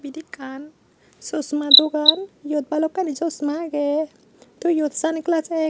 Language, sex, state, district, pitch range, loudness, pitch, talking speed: Chakma, female, Tripura, Unakoti, 295-320 Hz, -19 LUFS, 310 Hz, 135 wpm